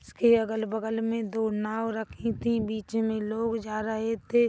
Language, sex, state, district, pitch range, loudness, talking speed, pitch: Hindi, female, Chhattisgarh, Bilaspur, 220-230 Hz, -28 LUFS, 175 wpm, 225 Hz